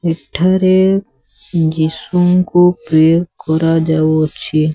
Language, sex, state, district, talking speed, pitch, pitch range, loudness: Odia, male, Odisha, Sambalpur, 65 wpm, 165 Hz, 155-180 Hz, -13 LUFS